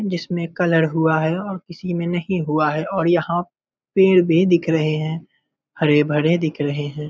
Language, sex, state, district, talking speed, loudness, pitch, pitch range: Hindi, male, Bihar, Muzaffarpur, 175 wpm, -19 LUFS, 165 Hz, 155-175 Hz